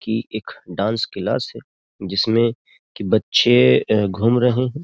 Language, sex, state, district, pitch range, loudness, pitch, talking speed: Hindi, male, Uttar Pradesh, Jyotiba Phule Nagar, 100-115 Hz, -18 LUFS, 110 Hz, 150 wpm